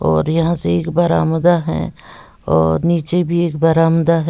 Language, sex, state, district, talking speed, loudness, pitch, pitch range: Hindi, female, Uttar Pradesh, Lalitpur, 165 wpm, -16 LUFS, 165 Hz, 155-170 Hz